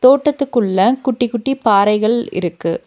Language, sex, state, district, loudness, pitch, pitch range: Tamil, female, Tamil Nadu, Nilgiris, -15 LUFS, 235 Hz, 200-260 Hz